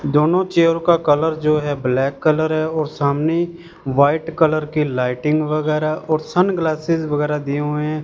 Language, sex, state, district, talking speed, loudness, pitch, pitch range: Hindi, male, Punjab, Fazilka, 165 wpm, -18 LUFS, 155 Hz, 150-160 Hz